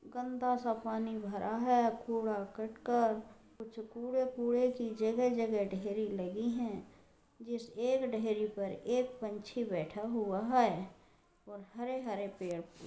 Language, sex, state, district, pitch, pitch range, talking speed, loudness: Hindi, female, Uttar Pradesh, Jyotiba Phule Nagar, 225 Hz, 205-240 Hz, 130 wpm, -36 LUFS